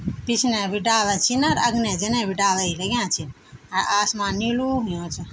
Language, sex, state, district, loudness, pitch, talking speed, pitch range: Garhwali, female, Uttarakhand, Tehri Garhwal, -22 LUFS, 205 Hz, 190 wpm, 190-235 Hz